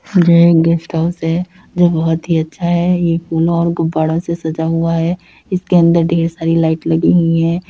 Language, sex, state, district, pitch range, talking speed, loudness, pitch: Hindi, female, Uttar Pradesh, Budaun, 165-170 Hz, 205 wpm, -14 LUFS, 165 Hz